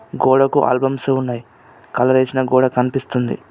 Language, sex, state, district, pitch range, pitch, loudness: Telugu, male, Telangana, Mahabubabad, 125-135 Hz, 130 Hz, -17 LUFS